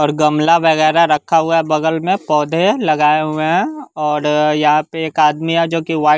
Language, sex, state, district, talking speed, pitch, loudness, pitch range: Hindi, male, Bihar, West Champaran, 215 wpm, 155 Hz, -14 LUFS, 150-165 Hz